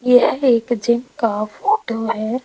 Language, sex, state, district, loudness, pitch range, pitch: Hindi, female, Rajasthan, Jaipur, -18 LUFS, 230-250 Hz, 240 Hz